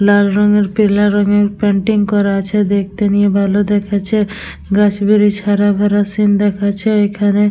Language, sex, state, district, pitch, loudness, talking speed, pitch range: Bengali, female, West Bengal, Dakshin Dinajpur, 205 Hz, -13 LUFS, 145 wpm, 200-205 Hz